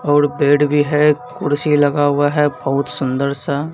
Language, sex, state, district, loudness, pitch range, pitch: Hindi, male, Bihar, Katihar, -16 LUFS, 140-150 Hz, 145 Hz